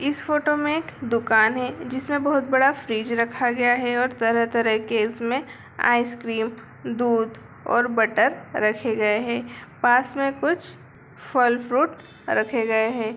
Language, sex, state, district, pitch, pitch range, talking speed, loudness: Hindi, female, Bihar, Begusarai, 240 Hz, 225-260 Hz, 150 wpm, -22 LUFS